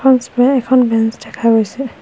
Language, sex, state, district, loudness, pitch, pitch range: Assamese, female, Assam, Hailakandi, -14 LUFS, 245 Hz, 225-260 Hz